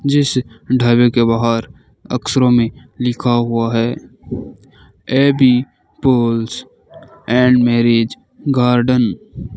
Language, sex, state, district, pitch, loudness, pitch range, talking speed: Hindi, male, Rajasthan, Bikaner, 120 Hz, -15 LUFS, 115-125 Hz, 95 wpm